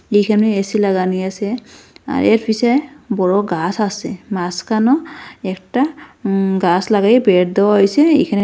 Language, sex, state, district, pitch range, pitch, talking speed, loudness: Bengali, female, Assam, Hailakandi, 190-240 Hz, 210 Hz, 135 wpm, -16 LUFS